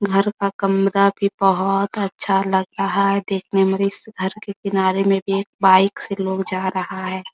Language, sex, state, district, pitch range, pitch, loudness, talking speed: Hindi, female, Bihar, Araria, 190-200 Hz, 195 Hz, -19 LUFS, 205 wpm